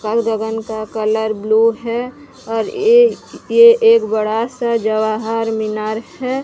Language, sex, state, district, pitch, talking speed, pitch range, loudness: Hindi, female, Odisha, Sambalpur, 225 Hz, 140 wpm, 220-255 Hz, -16 LUFS